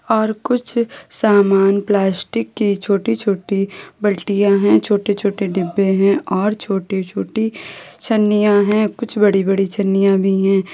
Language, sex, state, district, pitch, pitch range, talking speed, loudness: Hindi, female, Uttar Pradesh, Lalitpur, 200 Hz, 195-210 Hz, 130 wpm, -17 LUFS